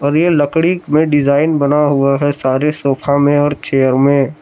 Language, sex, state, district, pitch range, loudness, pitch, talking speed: Hindi, male, Jharkhand, Palamu, 140-150 Hz, -13 LUFS, 145 Hz, 190 wpm